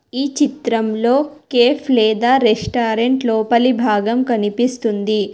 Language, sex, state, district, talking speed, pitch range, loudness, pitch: Telugu, female, Telangana, Hyderabad, 90 wpm, 220-255 Hz, -16 LUFS, 235 Hz